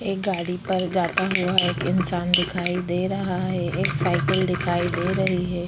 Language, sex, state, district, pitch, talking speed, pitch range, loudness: Hindi, female, Chhattisgarh, Korba, 180 Hz, 200 wpm, 175-185 Hz, -23 LUFS